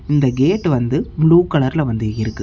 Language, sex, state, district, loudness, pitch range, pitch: Tamil, male, Tamil Nadu, Namakkal, -16 LUFS, 120-155 Hz, 140 Hz